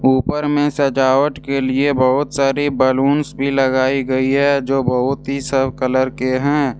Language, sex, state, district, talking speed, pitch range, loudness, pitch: Hindi, male, Jharkhand, Deoghar, 160 wpm, 130-140 Hz, -17 LUFS, 135 Hz